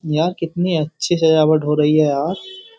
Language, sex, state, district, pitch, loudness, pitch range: Hindi, male, Uttar Pradesh, Jyotiba Phule Nagar, 160 Hz, -17 LUFS, 150-175 Hz